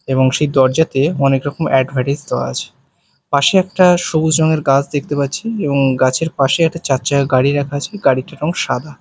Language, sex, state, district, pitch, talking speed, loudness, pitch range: Bengali, male, Bihar, Katihar, 145 Hz, 175 wpm, -15 LUFS, 135-160 Hz